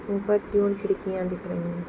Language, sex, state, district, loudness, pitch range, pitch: Hindi, female, Bihar, Sitamarhi, -26 LUFS, 180-205 Hz, 195 Hz